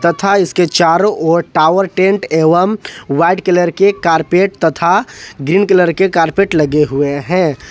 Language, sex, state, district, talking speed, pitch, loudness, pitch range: Hindi, male, Jharkhand, Ranchi, 150 wpm, 175 Hz, -12 LUFS, 160-190 Hz